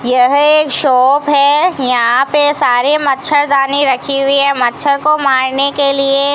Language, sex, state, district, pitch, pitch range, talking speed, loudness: Hindi, female, Rajasthan, Bikaner, 280 Hz, 265-290 Hz, 160 wpm, -11 LUFS